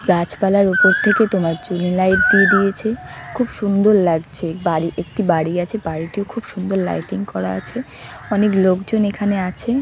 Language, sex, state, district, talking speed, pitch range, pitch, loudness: Bengali, female, West Bengal, North 24 Parganas, 155 wpm, 170-205 Hz, 190 Hz, -17 LUFS